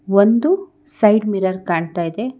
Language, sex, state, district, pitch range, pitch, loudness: Kannada, female, Karnataka, Bangalore, 185-260 Hz, 210 Hz, -17 LUFS